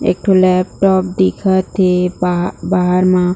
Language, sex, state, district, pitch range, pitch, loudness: Chhattisgarhi, female, Chhattisgarh, Jashpur, 180-190 Hz, 185 Hz, -14 LUFS